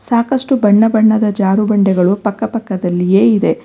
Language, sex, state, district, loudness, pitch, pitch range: Kannada, female, Karnataka, Bangalore, -13 LUFS, 215 Hz, 195-225 Hz